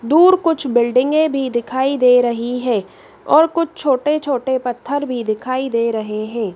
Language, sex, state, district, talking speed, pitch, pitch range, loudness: Hindi, female, Madhya Pradesh, Dhar, 165 wpm, 255 Hz, 235-285 Hz, -17 LUFS